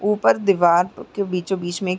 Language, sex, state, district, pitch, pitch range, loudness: Hindi, female, Chhattisgarh, Raigarh, 185 Hz, 180-200 Hz, -20 LUFS